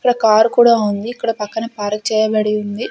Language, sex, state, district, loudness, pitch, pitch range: Telugu, female, Andhra Pradesh, Sri Satya Sai, -16 LUFS, 220 Hz, 210-235 Hz